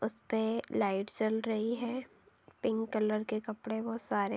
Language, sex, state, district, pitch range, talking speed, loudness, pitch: Hindi, female, Uttar Pradesh, Deoria, 215-230 Hz, 165 wpm, -34 LUFS, 220 Hz